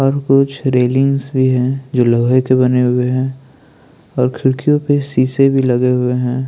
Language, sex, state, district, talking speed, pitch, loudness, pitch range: Hindi, male, Maharashtra, Chandrapur, 175 wpm, 130 Hz, -14 LUFS, 125-135 Hz